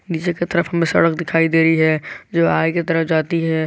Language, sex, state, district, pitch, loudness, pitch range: Hindi, male, Jharkhand, Garhwa, 165 Hz, -17 LUFS, 160-170 Hz